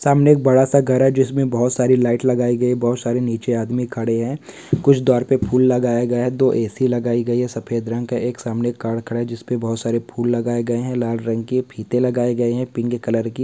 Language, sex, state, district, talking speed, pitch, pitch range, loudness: Hindi, male, Uttar Pradesh, Etah, 240 wpm, 120 Hz, 120-125 Hz, -19 LUFS